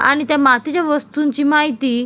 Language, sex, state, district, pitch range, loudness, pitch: Marathi, female, Maharashtra, Solapur, 265-300 Hz, -16 LUFS, 290 Hz